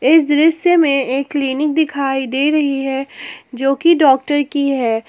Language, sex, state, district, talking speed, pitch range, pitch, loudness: Hindi, female, Jharkhand, Garhwa, 155 wpm, 270-300 Hz, 280 Hz, -15 LUFS